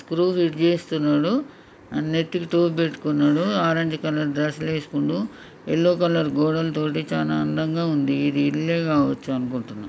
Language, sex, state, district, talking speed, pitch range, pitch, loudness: Telugu, male, Telangana, Karimnagar, 140 wpm, 145-165 Hz, 155 Hz, -22 LUFS